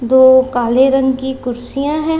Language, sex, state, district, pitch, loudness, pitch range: Hindi, female, Punjab, Kapurthala, 260 Hz, -13 LUFS, 250-270 Hz